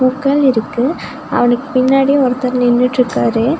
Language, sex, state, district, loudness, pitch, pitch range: Tamil, female, Tamil Nadu, Nilgiris, -14 LUFS, 255 Hz, 245-270 Hz